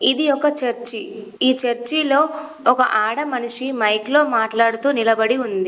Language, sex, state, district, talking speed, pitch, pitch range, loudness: Telugu, female, Telangana, Komaram Bheem, 135 wpm, 250 Hz, 225-285 Hz, -18 LUFS